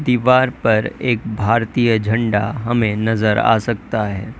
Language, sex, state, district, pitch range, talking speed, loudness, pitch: Hindi, male, Uttar Pradesh, Lalitpur, 110-120 Hz, 135 wpm, -17 LUFS, 115 Hz